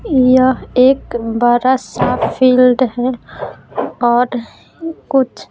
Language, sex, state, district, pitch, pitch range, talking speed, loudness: Hindi, female, Bihar, Patna, 255 Hz, 245-260 Hz, 85 wpm, -14 LUFS